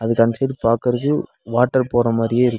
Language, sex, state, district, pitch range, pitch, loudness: Tamil, male, Tamil Nadu, Nilgiris, 115-125 Hz, 120 Hz, -19 LUFS